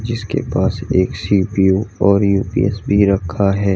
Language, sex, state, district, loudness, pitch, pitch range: Hindi, male, Uttar Pradesh, Lalitpur, -16 LUFS, 100 Hz, 95-110 Hz